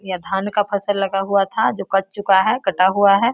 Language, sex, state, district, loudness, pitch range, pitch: Hindi, female, Bihar, Samastipur, -18 LUFS, 195-205 Hz, 195 Hz